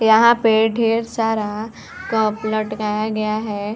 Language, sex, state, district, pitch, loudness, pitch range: Hindi, female, Chhattisgarh, Sarguja, 220 Hz, -19 LUFS, 215-225 Hz